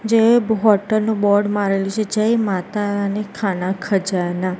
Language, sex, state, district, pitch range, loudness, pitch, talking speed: Gujarati, female, Gujarat, Gandhinagar, 195-215 Hz, -18 LUFS, 205 Hz, 130 wpm